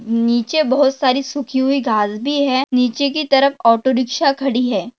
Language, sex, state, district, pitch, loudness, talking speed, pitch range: Hindi, female, Maharashtra, Pune, 265 Hz, -16 LUFS, 180 wpm, 245-275 Hz